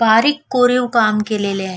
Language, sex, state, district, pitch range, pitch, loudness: Marathi, female, Maharashtra, Solapur, 210-250 Hz, 225 Hz, -16 LUFS